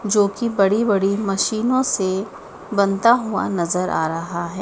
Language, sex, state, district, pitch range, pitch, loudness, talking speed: Hindi, female, Madhya Pradesh, Dhar, 190-215 Hz, 200 Hz, -19 LUFS, 155 wpm